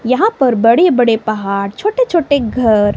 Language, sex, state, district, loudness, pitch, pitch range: Hindi, female, Himachal Pradesh, Shimla, -13 LUFS, 245 Hz, 215-320 Hz